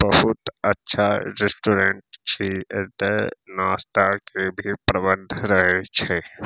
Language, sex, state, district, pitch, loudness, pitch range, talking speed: Maithili, male, Bihar, Saharsa, 95 Hz, -21 LUFS, 95-100 Hz, 100 wpm